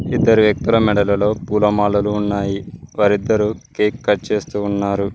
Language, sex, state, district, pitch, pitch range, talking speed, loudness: Telugu, male, Telangana, Mahabubabad, 105 Hz, 100-105 Hz, 115 wpm, -17 LUFS